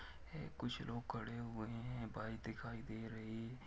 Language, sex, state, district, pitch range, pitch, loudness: Hindi, male, Chhattisgarh, Sukma, 110-115 Hz, 115 Hz, -47 LUFS